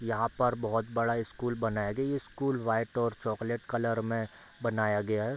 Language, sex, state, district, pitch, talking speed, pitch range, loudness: Hindi, male, Bihar, Bhagalpur, 115 Hz, 200 wpm, 110-120 Hz, -32 LUFS